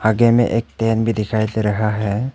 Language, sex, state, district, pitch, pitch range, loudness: Hindi, male, Arunachal Pradesh, Papum Pare, 110 Hz, 110-115 Hz, -18 LUFS